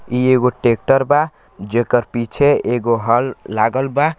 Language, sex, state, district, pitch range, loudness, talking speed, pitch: Hindi, male, Bihar, Gopalganj, 115-135 Hz, -16 LUFS, 145 wpm, 125 Hz